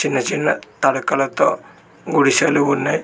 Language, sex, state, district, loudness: Telugu, male, Telangana, Mahabubabad, -18 LUFS